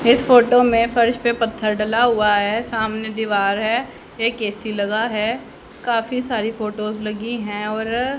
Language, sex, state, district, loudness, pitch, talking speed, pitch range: Hindi, female, Haryana, Jhajjar, -19 LUFS, 225 Hz, 160 wpm, 215-235 Hz